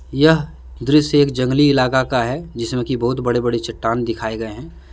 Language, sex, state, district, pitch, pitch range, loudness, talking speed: Hindi, male, Jharkhand, Deoghar, 125 Hz, 115-140 Hz, -18 LUFS, 195 wpm